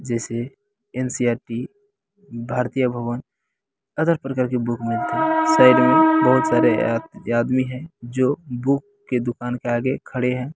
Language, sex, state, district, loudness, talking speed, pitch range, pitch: Hindi, male, Bihar, Bhagalpur, -20 LUFS, 135 wpm, 120-160 Hz, 125 Hz